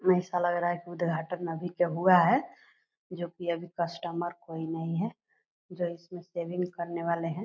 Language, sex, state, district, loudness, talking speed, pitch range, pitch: Hindi, female, Bihar, Purnia, -30 LUFS, 175 wpm, 170-180 Hz, 175 Hz